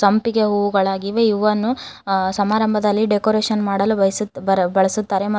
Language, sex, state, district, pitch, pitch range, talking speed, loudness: Kannada, female, Karnataka, Koppal, 205 Hz, 195-215 Hz, 110 wpm, -18 LUFS